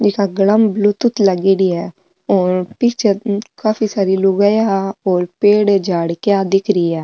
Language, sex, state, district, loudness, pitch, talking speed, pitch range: Marwari, female, Rajasthan, Nagaur, -15 LUFS, 200 Hz, 155 wpm, 190-210 Hz